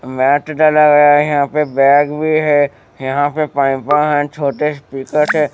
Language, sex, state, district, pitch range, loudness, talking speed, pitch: Hindi, male, Bihar, West Champaran, 140-150 Hz, -13 LUFS, 140 wpm, 145 Hz